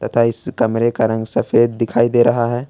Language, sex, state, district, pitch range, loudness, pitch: Hindi, male, Jharkhand, Ranchi, 115-120 Hz, -16 LUFS, 115 Hz